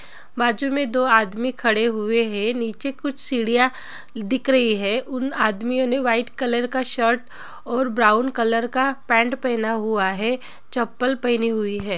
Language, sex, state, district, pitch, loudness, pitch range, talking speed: Hindi, female, Bihar, Gopalganj, 240 Hz, -21 LUFS, 225-255 Hz, 160 wpm